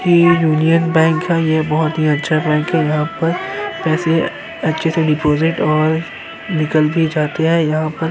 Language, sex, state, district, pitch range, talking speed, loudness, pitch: Hindi, male, Uttar Pradesh, Jyotiba Phule Nagar, 155-165 Hz, 155 wpm, -16 LUFS, 160 Hz